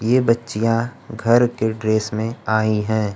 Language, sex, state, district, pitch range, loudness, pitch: Hindi, male, Bihar, Kaimur, 110-115 Hz, -20 LUFS, 110 Hz